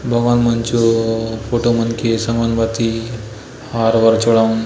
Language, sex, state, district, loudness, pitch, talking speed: Chhattisgarhi, male, Chhattisgarh, Bastar, -16 LUFS, 115 Hz, 155 wpm